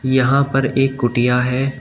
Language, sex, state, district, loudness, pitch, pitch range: Hindi, male, Uttar Pradesh, Shamli, -16 LUFS, 135 Hz, 125-135 Hz